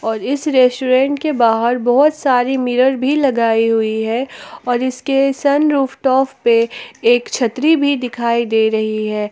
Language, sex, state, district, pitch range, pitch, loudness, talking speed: Hindi, female, Jharkhand, Palamu, 230-275 Hz, 250 Hz, -15 LUFS, 155 wpm